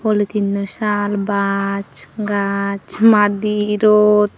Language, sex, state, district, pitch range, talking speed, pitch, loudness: Chakma, female, Tripura, Unakoti, 200-210 Hz, 95 wpm, 205 Hz, -17 LUFS